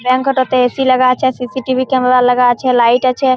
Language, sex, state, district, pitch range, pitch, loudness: Bengali, female, West Bengal, Malda, 250-260 Hz, 255 Hz, -13 LUFS